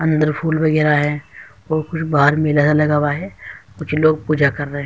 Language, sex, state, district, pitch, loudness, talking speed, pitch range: Hindi, male, Uttar Pradesh, Muzaffarnagar, 150 Hz, -17 LUFS, 220 wpm, 145-155 Hz